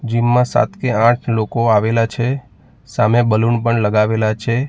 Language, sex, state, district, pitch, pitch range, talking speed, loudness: Gujarati, male, Gujarat, Gandhinagar, 115 Hz, 110-120 Hz, 165 wpm, -16 LUFS